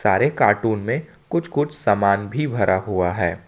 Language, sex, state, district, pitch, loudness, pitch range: Hindi, male, Jharkhand, Ranchi, 105 Hz, -21 LUFS, 100-150 Hz